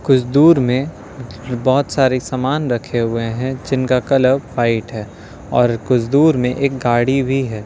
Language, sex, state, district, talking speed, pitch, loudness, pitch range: Hindi, male, Delhi, New Delhi, 165 wpm, 130 Hz, -16 LUFS, 120-135 Hz